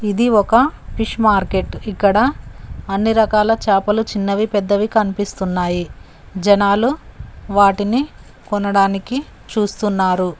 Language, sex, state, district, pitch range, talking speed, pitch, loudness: Telugu, female, Telangana, Mahabubabad, 195-220 Hz, 85 wpm, 205 Hz, -17 LUFS